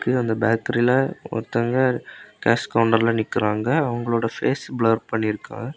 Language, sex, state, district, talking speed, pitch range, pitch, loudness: Tamil, male, Tamil Nadu, Kanyakumari, 105 wpm, 115-125 Hz, 115 Hz, -22 LUFS